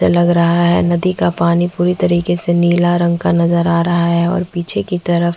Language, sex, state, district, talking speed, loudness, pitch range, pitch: Hindi, female, Chhattisgarh, Korba, 235 wpm, -14 LUFS, 170-175 Hz, 175 Hz